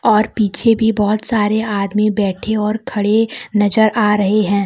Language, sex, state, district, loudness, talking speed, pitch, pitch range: Hindi, female, Jharkhand, Deoghar, -15 LUFS, 170 wpm, 215 Hz, 205-220 Hz